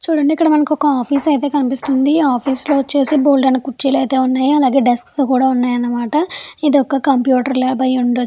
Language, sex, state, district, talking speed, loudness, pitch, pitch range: Telugu, female, Andhra Pradesh, Chittoor, 190 wpm, -15 LUFS, 270 Hz, 260-290 Hz